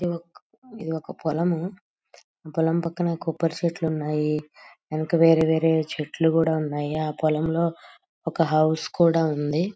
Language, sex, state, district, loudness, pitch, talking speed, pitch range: Telugu, female, Andhra Pradesh, Guntur, -24 LUFS, 160 Hz, 135 wpm, 155-170 Hz